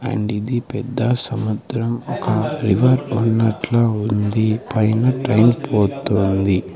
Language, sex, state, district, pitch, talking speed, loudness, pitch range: Telugu, male, Andhra Pradesh, Sri Satya Sai, 115 Hz, 100 wpm, -18 LUFS, 105-125 Hz